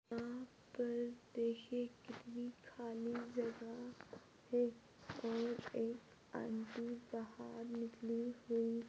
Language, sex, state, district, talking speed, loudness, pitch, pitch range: Hindi, female, Chhattisgarh, Rajnandgaon, 90 wpm, -45 LUFS, 235 Hz, 230-240 Hz